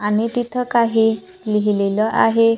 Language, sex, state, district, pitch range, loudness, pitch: Marathi, female, Maharashtra, Gondia, 210-230 Hz, -18 LUFS, 225 Hz